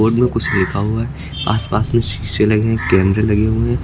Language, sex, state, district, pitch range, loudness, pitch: Hindi, male, Uttar Pradesh, Lucknow, 105-115 Hz, -17 LUFS, 110 Hz